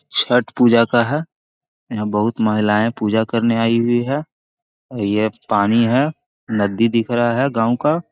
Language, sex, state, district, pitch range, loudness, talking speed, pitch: Magahi, male, Bihar, Jahanabad, 110-130 Hz, -17 LUFS, 170 wpm, 115 Hz